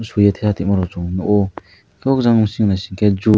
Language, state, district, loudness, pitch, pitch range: Kokborok, Tripura, West Tripura, -17 LUFS, 105 Hz, 95-110 Hz